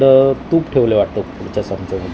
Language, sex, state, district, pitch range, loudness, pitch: Marathi, male, Maharashtra, Mumbai Suburban, 95-135 Hz, -16 LUFS, 105 Hz